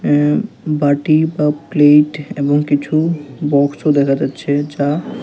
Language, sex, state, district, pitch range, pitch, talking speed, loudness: Bengali, male, Tripura, West Tripura, 145-155 Hz, 150 Hz, 125 wpm, -15 LUFS